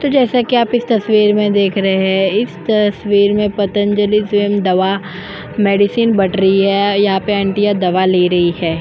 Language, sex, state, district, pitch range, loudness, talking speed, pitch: Hindi, female, Goa, North and South Goa, 190-210 Hz, -14 LUFS, 185 wpm, 200 Hz